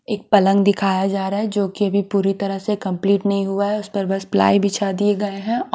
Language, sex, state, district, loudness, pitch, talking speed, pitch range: Hindi, female, Haryana, Charkhi Dadri, -19 LUFS, 200 Hz, 260 wpm, 195-205 Hz